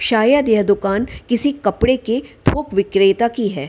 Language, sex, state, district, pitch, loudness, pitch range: Hindi, female, Bihar, Gaya, 225 Hz, -17 LUFS, 200-250 Hz